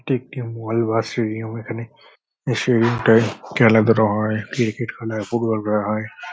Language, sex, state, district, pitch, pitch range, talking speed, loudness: Bengali, male, West Bengal, North 24 Parganas, 115 Hz, 110-120 Hz, 200 wpm, -20 LUFS